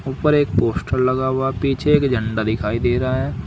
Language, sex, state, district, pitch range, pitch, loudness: Hindi, male, Uttar Pradesh, Saharanpur, 115-135 Hz, 130 Hz, -19 LUFS